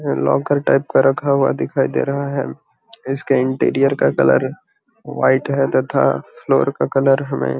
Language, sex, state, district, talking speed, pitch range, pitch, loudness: Magahi, male, Bihar, Gaya, 160 wpm, 130-140 Hz, 135 Hz, -17 LUFS